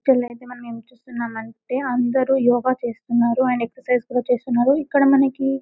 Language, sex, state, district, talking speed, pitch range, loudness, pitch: Telugu, female, Telangana, Karimnagar, 160 wpm, 240-265 Hz, -20 LUFS, 250 Hz